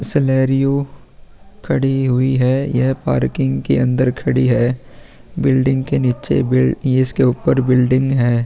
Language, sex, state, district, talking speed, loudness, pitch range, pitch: Hindi, male, Bihar, Vaishali, 135 wpm, -16 LUFS, 125-135 Hz, 130 Hz